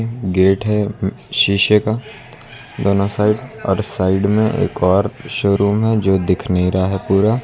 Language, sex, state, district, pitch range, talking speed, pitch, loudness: Hindi, male, Uttar Pradesh, Lucknow, 95-115 Hz, 155 wpm, 105 Hz, -16 LUFS